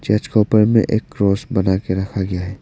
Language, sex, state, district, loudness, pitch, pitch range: Hindi, male, Arunachal Pradesh, Papum Pare, -17 LUFS, 100 Hz, 95-110 Hz